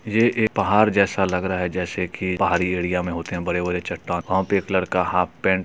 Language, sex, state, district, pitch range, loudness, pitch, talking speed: Hindi, male, Bihar, Supaul, 90-100 Hz, -22 LUFS, 90 Hz, 245 wpm